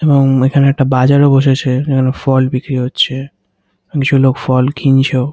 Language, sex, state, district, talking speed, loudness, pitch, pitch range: Bengali, male, West Bengal, Kolkata, 145 wpm, -12 LUFS, 135 Hz, 130-140 Hz